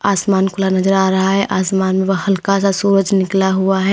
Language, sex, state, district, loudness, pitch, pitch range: Hindi, female, Uttar Pradesh, Lalitpur, -15 LUFS, 195 Hz, 190-195 Hz